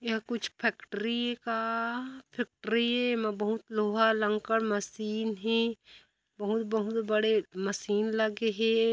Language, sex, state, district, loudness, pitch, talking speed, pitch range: Hindi, female, Chhattisgarh, Kabirdham, -30 LUFS, 225 Hz, 115 wpm, 215-230 Hz